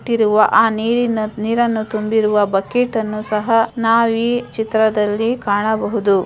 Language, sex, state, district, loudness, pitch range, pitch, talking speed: Kannada, female, Karnataka, Dharwad, -16 LUFS, 215-230 Hz, 220 Hz, 115 wpm